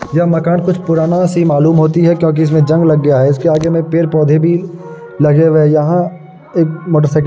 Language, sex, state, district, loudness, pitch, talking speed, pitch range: Hindi, male, Uttar Pradesh, Muzaffarnagar, -12 LUFS, 160 Hz, 220 wpm, 155-170 Hz